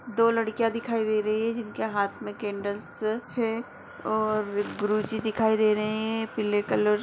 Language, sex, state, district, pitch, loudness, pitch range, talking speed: Hindi, female, Uttar Pradesh, Etah, 220 Hz, -27 LUFS, 210-225 Hz, 170 wpm